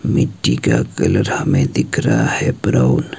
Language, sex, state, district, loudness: Hindi, male, Himachal Pradesh, Shimla, -16 LUFS